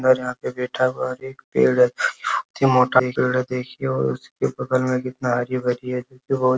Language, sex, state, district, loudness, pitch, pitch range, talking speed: Hindi, male, Uttar Pradesh, Hamirpur, -22 LUFS, 125 Hz, 125-130 Hz, 200 wpm